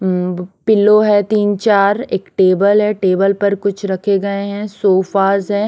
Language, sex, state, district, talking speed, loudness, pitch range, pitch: Hindi, female, Chandigarh, Chandigarh, 160 wpm, -14 LUFS, 195-205 Hz, 200 Hz